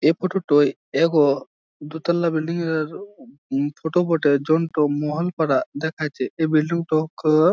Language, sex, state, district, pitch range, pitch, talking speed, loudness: Bengali, male, West Bengal, Jhargram, 150-165 Hz, 160 Hz, 135 wpm, -21 LUFS